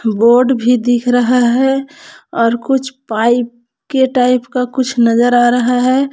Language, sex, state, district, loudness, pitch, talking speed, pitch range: Hindi, female, Jharkhand, Palamu, -13 LUFS, 245 Hz, 155 wpm, 240-260 Hz